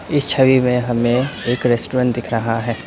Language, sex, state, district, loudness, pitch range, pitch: Hindi, male, Assam, Kamrup Metropolitan, -17 LUFS, 120-130 Hz, 125 Hz